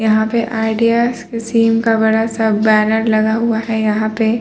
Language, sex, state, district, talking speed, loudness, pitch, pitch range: Hindi, male, Uttar Pradesh, Muzaffarnagar, 190 wpm, -15 LUFS, 225 Hz, 220-230 Hz